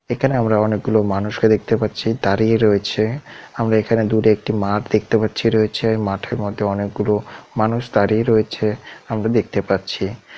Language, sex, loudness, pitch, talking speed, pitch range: Odia, male, -19 LUFS, 110 Hz, 150 wpm, 105-115 Hz